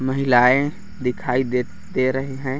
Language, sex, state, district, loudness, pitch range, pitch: Hindi, male, Chhattisgarh, Raigarh, -20 LUFS, 125-135 Hz, 130 Hz